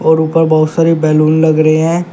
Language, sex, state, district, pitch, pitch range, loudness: Hindi, male, Uttar Pradesh, Shamli, 160 Hz, 155-165 Hz, -11 LUFS